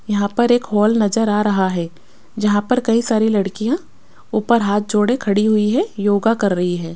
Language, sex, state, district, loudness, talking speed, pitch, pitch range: Hindi, female, Rajasthan, Jaipur, -17 LUFS, 200 wpm, 210 Hz, 205-230 Hz